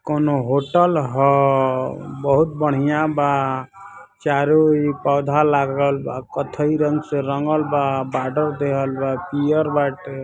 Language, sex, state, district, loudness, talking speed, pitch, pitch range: Bhojpuri, male, Uttar Pradesh, Ghazipur, -19 LUFS, 115 wpm, 145 Hz, 140-150 Hz